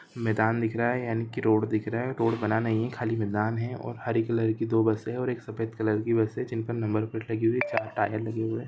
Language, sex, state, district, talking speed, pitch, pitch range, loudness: Hindi, male, Chhattisgarh, Raigarh, 305 wpm, 115 Hz, 110-115 Hz, -28 LUFS